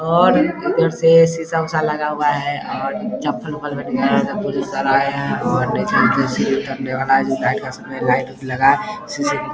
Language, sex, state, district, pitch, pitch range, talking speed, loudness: Hindi, male, Bihar, Vaishali, 150 Hz, 135-165 Hz, 155 wpm, -18 LUFS